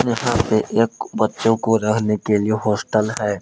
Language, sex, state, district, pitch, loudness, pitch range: Hindi, male, Jharkhand, Palamu, 110 Hz, -19 LUFS, 105-115 Hz